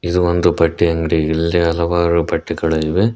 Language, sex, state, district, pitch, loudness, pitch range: Kannada, male, Karnataka, Koppal, 85 Hz, -16 LUFS, 80-85 Hz